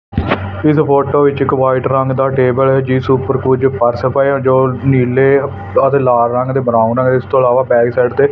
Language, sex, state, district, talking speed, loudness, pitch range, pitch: Punjabi, male, Punjab, Fazilka, 195 wpm, -12 LUFS, 125-135 Hz, 130 Hz